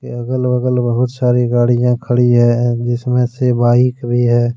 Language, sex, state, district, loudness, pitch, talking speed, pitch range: Hindi, male, Jharkhand, Deoghar, -14 LUFS, 120 Hz, 155 wpm, 120-125 Hz